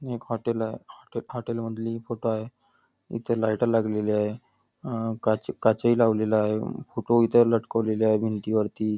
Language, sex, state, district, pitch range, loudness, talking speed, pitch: Marathi, male, Maharashtra, Nagpur, 110-115 Hz, -26 LUFS, 145 wpm, 115 Hz